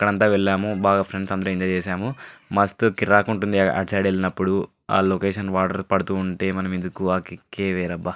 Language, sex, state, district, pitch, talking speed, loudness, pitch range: Telugu, male, Andhra Pradesh, Anantapur, 95 Hz, 200 wpm, -22 LUFS, 95-100 Hz